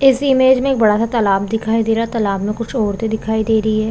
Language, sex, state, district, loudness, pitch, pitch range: Hindi, female, Chhattisgarh, Balrampur, -16 LUFS, 225 Hz, 215-235 Hz